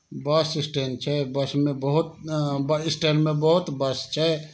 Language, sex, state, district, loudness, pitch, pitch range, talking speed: Maithili, male, Bihar, Samastipur, -24 LUFS, 150 Hz, 140-155 Hz, 130 wpm